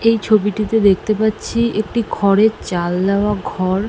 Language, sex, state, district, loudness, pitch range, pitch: Bengali, female, West Bengal, North 24 Parganas, -16 LUFS, 195-220 Hz, 210 Hz